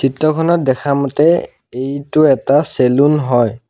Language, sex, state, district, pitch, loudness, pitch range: Assamese, male, Assam, Sonitpur, 140 Hz, -14 LUFS, 130-155 Hz